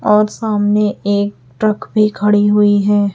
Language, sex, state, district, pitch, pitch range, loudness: Hindi, female, Chhattisgarh, Raipur, 210 Hz, 205-210 Hz, -14 LUFS